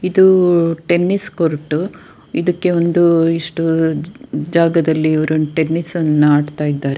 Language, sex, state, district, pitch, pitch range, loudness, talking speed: Kannada, female, Karnataka, Dakshina Kannada, 165 Hz, 155-175 Hz, -15 LUFS, 110 wpm